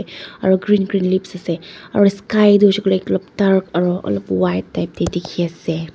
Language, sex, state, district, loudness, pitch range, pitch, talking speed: Nagamese, female, Nagaland, Dimapur, -17 LUFS, 170-200 Hz, 185 Hz, 180 wpm